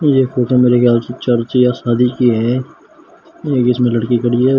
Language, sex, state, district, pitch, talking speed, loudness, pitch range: Hindi, male, Uttar Pradesh, Shamli, 125 Hz, 195 wpm, -14 LUFS, 120-125 Hz